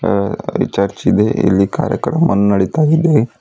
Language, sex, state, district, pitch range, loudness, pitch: Kannada, female, Karnataka, Bidar, 100-145 Hz, -15 LUFS, 100 Hz